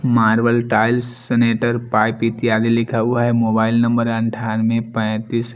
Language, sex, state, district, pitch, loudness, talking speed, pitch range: Hindi, male, Bihar, Patna, 115 Hz, -17 LUFS, 130 wpm, 110-120 Hz